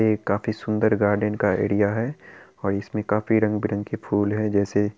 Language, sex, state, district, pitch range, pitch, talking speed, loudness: Hindi, male, Bihar, Araria, 105-110 Hz, 105 Hz, 195 wpm, -23 LUFS